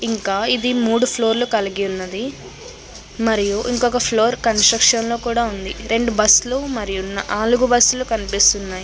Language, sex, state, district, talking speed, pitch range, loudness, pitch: Telugu, female, Andhra Pradesh, Krishna, 135 wpm, 205-240 Hz, -17 LUFS, 225 Hz